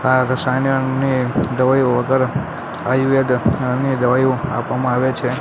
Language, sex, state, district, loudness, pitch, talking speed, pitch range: Gujarati, male, Gujarat, Gandhinagar, -17 LUFS, 130 Hz, 110 wpm, 125-130 Hz